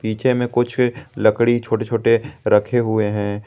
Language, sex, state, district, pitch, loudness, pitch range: Hindi, male, Jharkhand, Garhwa, 115 Hz, -18 LUFS, 110-120 Hz